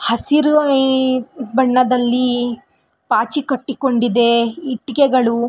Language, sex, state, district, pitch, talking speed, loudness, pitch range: Kannada, female, Karnataka, Belgaum, 255 Hz, 65 wpm, -16 LUFS, 240-270 Hz